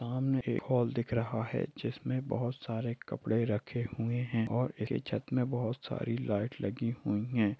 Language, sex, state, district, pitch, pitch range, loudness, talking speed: Hindi, male, Jharkhand, Sahebganj, 120 Hz, 110-125 Hz, -34 LUFS, 180 wpm